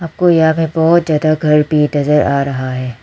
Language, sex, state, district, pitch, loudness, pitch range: Hindi, female, Arunachal Pradesh, Lower Dibang Valley, 150 Hz, -13 LUFS, 140-160 Hz